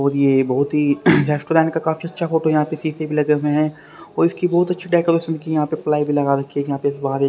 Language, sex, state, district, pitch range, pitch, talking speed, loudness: Hindi, male, Haryana, Rohtak, 140-160 Hz, 150 Hz, 240 wpm, -19 LUFS